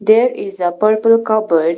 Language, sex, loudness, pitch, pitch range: English, female, -14 LUFS, 215 Hz, 175-220 Hz